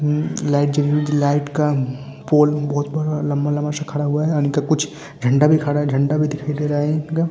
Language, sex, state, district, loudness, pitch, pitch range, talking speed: Hindi, male, Bihar, Vaishali, -19 LUFS, 145 Hz, 145-150 Hz, 230 wpm